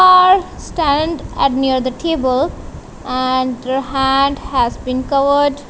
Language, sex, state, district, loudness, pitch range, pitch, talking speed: English, female, Punjab, Kapurthala, -16 LUFS, 255-305 Hz, 275 Hz, 105 wpm